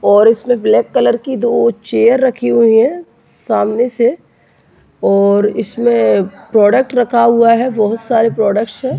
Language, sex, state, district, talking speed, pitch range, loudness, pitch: Hindi, male, Bihar, Bhagalpur, 145 wpm, 210-245 Hz, -12 LUFS, 230 Hz